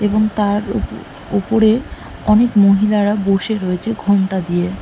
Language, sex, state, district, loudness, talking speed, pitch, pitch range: Bengali, female, West Bengal, North 24 Parganas, -16 LUFS, 110 wpm, 205 Hz, 195-215 Hz